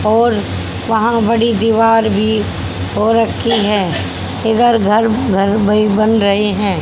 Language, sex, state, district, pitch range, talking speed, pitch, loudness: Hindi, female, Haryana, Jhajjar, 205-225 Hz, 130 wpm, 215 Hz, -14 LUFS